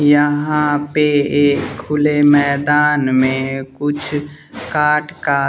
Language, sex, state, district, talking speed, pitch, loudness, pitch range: Hindi, male, Bihar, West Champaran, 100 wpm, 145 Hz, -15 LUFS, 140-150 Hz